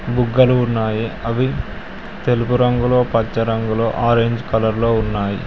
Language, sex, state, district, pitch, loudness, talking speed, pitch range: Telugu, male, Telangana, Mahabubabad, 115 Hz, -17 LUFS, 120 wpm, 110-125 Hz